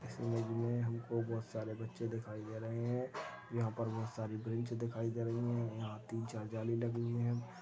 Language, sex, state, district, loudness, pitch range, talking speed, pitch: Hindi, male, Chhattisgarh, Balrampur, -40 LUFS, 110-115 Hz, 215 wpm, 115 Hz